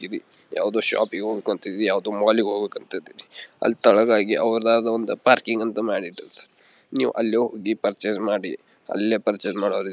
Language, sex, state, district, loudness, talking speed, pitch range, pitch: Kannada, male, Karnataka, Belgaum, -22 LUFS, 145 wpm, 105-115 Hz, 115 Hz